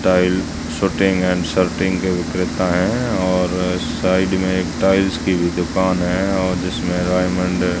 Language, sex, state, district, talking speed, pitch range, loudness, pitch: Hindi, male, Rajasthan, Jaisalmer, 155 wpm, 90-95 Hz, -18 LUFS, 90 Hz